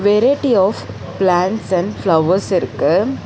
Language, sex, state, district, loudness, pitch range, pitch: Tamil, female, Tamil Nadu, Chennai, -16 LUFS, 180-205 Hz, 190 Hz